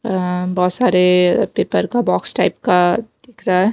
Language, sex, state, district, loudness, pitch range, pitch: Hindi, female, Bihar, West Champaran, -16 LUFS, 180-230 Hz, 185 Hz